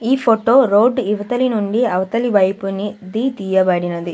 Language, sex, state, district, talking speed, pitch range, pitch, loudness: Telugu, female, Andhra Pradesh, Sri Satya Sai, 130 wpm, 190-245 Hz, 210 Hz, -16 LUFS